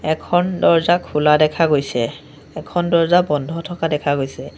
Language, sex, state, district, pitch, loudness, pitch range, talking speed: Assamese, male, Assam, Sonitpur, 155 Hz, -17 LUFS, 145-170 Hz, 145 wpm